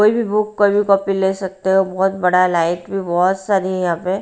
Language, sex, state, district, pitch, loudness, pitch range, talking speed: Hindi, female, Bihar, Patna, 190 Hz, -17 LUFS, 180-195 Hz, 255 wpm